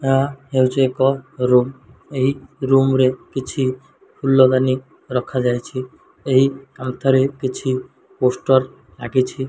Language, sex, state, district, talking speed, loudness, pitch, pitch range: Odia, male, Odisha, Malkangiri, 100 wpm, -19 LUFS, 130 Hz, 130-135 Hz